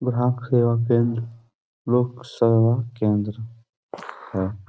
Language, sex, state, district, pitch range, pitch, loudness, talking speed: Hindi, male, Uttar Pradesh, Etah, 110-120 Hz, 115 Hz, -22 LUFS, 90 wpm